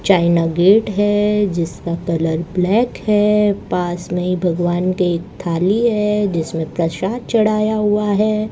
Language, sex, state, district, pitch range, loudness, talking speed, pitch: Hindi, female, Rajasthan, Bikaner, 170-210 Hz, -17 LUFS, 135 wpm, 185 Hz